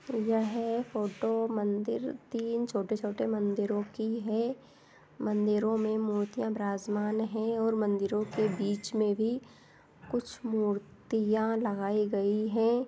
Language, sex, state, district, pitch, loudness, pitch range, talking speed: Hindi, female, Chhattisgarh, Kabirdham, 220 Hz, -31 LUFS, 210-225 Hz, 115 wpm